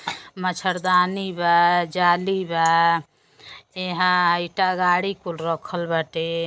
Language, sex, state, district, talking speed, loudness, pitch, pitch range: Bhojpuri, female, Uttar Pradesh, Deoria, 95 wpm, -21 LUFS, 175 Hz, 165-185 Hz